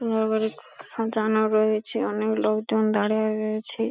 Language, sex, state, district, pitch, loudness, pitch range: Bengali, female, West Bengal, Paschim Medinipur, 220 Hz, -24 LUFS, 215-220 Hz